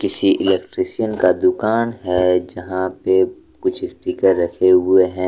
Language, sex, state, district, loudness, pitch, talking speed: Hindi, male, Jharkhand, Deoghar, -17 LUFS, 95 Hz, 135 wpm